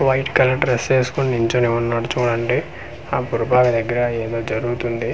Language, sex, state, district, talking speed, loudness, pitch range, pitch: Telugu, male, Andhra Pradesh, Manyam, 165 wpm, -19 LUFS, 115-130 Hz, 120 Hz